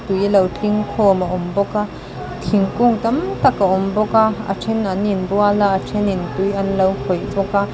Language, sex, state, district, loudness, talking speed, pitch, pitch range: Mizo, female, Mizoram, Aizawl, -18 LUFS, 215 wpm, 200 Hz, 195-210 Hz